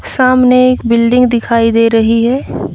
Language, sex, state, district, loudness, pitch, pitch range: Hindi, female, Haryana, Rohtak, -10 LUFS, 235 Hz, 230-255 Hz